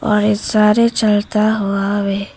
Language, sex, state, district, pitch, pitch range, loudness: Hindi, female, Arunachal Pradesh, Papum Pare, 210 Hz, 200-215 Hz, -15 LUFS